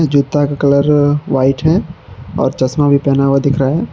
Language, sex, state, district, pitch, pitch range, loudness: Hindi, male, Jharkhand, Palamu, 140 Hz, 135-145 Hz, -13 LUFS